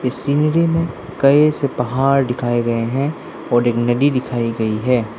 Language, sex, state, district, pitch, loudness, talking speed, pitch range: Hindi, male, Arunachal Pradesh, Lower Dibang Valley, 125 Hz, -17 LUFS, 175 wpm, 120-140 Hz